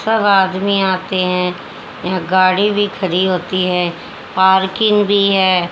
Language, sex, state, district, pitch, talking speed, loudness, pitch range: Hindi, female, Haryana, Jhajjar, 190 Hz, 135 wpm, -15 LUFS, 185-200 Hz